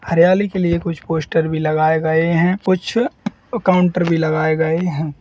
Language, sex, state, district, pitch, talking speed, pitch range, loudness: Hindi, male, Uttar Pradesh, Jalaun, 165 Hz, 160 wpm, 160-180 Hz, -17 LUFS